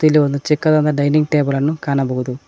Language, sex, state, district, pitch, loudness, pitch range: Kannada, male, Karnataka, Koppal, 145 Hz, -16 LUFS, 140-155 Hz